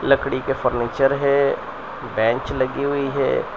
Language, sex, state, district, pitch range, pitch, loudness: Hindi, male, Gujarat, Valsad, 130-140 Hz, 135 Hz, -21 LUFS